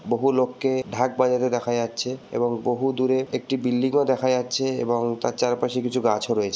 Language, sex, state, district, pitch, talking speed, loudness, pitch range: Bengali, male, West Bengal, Purulia, 125 Hz, 165 wpm, -23 LUFS, 120-130 Hz